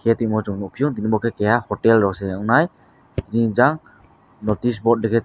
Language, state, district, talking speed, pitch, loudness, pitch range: Kokborok, Tripura, West Tripura, 160 wpm, 115 Hz, -20 LUFS, 105-120 Hz